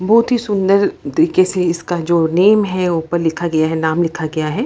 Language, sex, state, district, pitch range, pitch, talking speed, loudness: Hindi, female, Bihar, Lakhisarai, 160-195 Hz, 175 Hz, 220 wpm, -16 LUFS